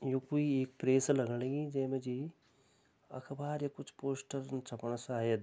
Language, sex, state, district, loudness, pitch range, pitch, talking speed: Garhwali, male, Uttarakhand, Tehri Garhwal, -36 LUFS, 130-140 Hz, 135 Hz, 165 wpm